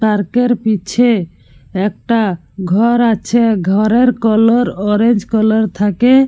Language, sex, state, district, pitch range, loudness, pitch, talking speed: Bengali, female, Jharkhand, Jamtara, 205-235 Hz, -13 LUFS, 220 Hz, 105 wpm